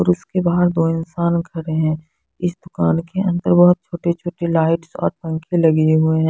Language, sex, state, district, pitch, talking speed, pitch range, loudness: Hindi, female, Punjab, Fazilka, 170 Hz, 200 wpm, 160-175 Hz, -18 LUFS